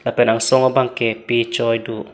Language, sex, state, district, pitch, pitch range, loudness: Karbi, male, Assam, Karbi Anglong, 115 Hz, 115-125 Hz, -17 LUFS